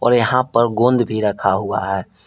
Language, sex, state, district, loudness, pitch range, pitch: Hindi, male, Jharkhand, Palamu, -17 LUFS, 100-120 Hz, 115 Hz